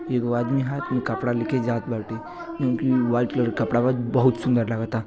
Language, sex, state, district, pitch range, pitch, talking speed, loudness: Bhojpuri, male, Uttar Pradesh, Gorakhpur, 115-130 Hz, 120 Hz, 215 wpm, -24 LUFS